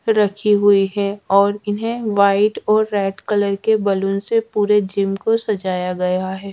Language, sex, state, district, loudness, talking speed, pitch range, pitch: Hindi, female, Madhya Pradesh, Dhar, -18 LUFS, 165 wpm, 195-215 Hz, 205 Hz